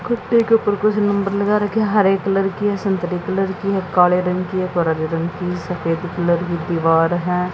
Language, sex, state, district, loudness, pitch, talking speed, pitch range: Hindi, female, Haryana, Jhajjar, -18 LUFS, 185 Hz, 225 wpm, 175-200 Hz